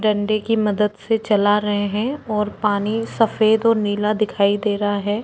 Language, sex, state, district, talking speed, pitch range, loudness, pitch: Hindi, female, Uttarakhand, Tehri Garhwal, 185 wpm, 205-220 Hz, -19 LUFS, 210 Hz